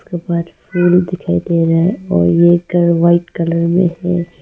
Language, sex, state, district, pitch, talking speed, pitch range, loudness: Hindi, female, Arunachal Pradesh, Longding, 175 Hz, 165 wpm, 170-175 Hz, -14 LUFS